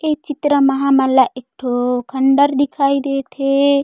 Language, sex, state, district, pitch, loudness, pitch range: Chhattisgarhi, female, Chhattisgarh, Raigarh, 275 Hz, -16 LUFS, 265-280 Hz